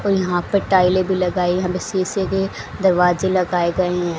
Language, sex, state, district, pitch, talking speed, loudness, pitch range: Hindi, female, Haryana, Rohtak, 185 Hz, 200 wpm, -19 LUFS, 180-190 Hz